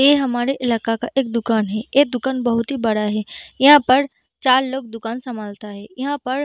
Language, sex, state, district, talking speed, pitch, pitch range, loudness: Hindi, female, Bihar, Darbhanga, 215 wpm, 245 Hz, 225-270 Hz, -19 LUFS